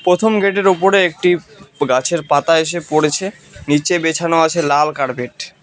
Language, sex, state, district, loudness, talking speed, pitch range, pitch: Bengali, male, West Bengal, Cooch Behar, -15 LUFS, 160 wpm, 150-180 Hz, 165 Hz